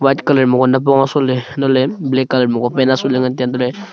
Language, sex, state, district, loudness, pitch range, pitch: Wancho, male, Arunachal Pradesh, Longding, -15 LUFS, 125-135 Hz, 130 Hz